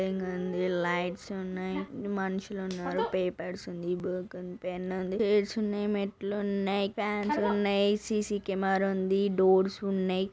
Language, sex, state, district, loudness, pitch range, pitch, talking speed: Telugu, female, Andhra Pradesh, Guntur, -30 LUFS, 185-200 Hz, 190 Hz, 105 wpm